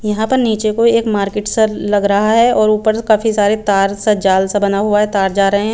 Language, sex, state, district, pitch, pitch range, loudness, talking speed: Hindi, female, Chandigarh, Chandigarh, 210 Hz, 200-220 Hz, -14 LUFS, 260 wpm